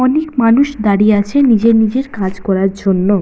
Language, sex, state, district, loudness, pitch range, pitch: Bengali, female, West Bengal, Purulia, -13 LUFS, 200-255 Hz, 220 Hz